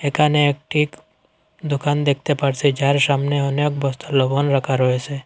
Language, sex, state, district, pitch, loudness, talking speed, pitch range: Bengali, male, Assam, Hailakandi, 140 Hz, -19 LUFS, 135 wpm, 135-145 Hz